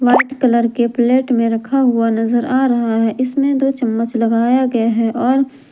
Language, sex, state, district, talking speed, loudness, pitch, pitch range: Hindi, female, Jharkhand, Garhwa, 190 wpm, -15 LUFS, 240 Hz, 230-260 Hz